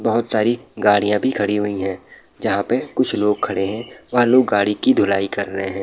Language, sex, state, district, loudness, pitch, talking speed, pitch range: Hindi, male, Bihar, Saharsa, -18 LUFS, 105 Hz, 215 wpm, 100-115 Hz